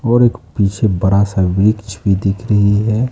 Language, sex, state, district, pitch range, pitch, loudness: Hindi, male, Bihar, West Champaran, 100-110 Hz, 100 Hz, -15 LUFS